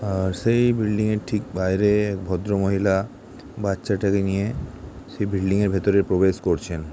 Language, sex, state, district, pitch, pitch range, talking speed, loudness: Bengali, male, West Bengal, Jhargram, 100 Hz, 95-105 Hz, 155 wpm, -22 LUFS